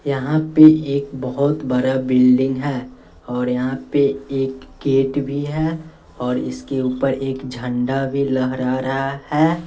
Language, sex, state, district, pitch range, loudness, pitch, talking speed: Hindi, male, Bihar, West Champaran, 130-140 Hz, -19 LUFS, 135 Hz, 145 wpm